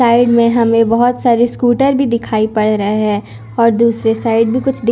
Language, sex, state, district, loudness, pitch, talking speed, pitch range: Hindi, female, Punjab, Kapurthala, -13 LUFS, 230 Hz, 205 wpm, 220-240 Hz